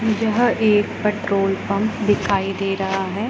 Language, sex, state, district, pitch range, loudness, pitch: Hindi, female, Punjab, Pathankot, 195-220 Hz, -20 LUFS, 205 Hz